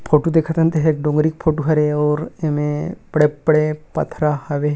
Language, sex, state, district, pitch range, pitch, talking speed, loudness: Chhattisgarhi, male, Chhattisgarh, Rajnandgaon, 150-155 Hz, 150 Hz, 175 wpm, -18 LUFS